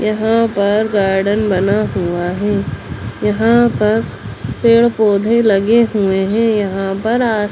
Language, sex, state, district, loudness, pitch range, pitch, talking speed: Hindi, female, Bihar, Begusarai, -14 LUFS, 195-220 Hz, 210 Hz, 135 wpm